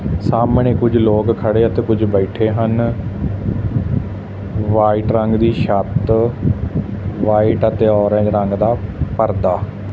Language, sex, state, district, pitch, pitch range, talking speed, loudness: Punjabi, male, Punjab, Fazilka, 110 Hz, 100-115 Hz, 115 wpm, -16 LUFS